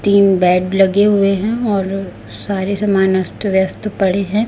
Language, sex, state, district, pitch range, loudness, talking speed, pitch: Hindi, female, Chhattisgarh, Raipur, 190-205 Hz, -15 LUFS, 160 wpm, 195 Hz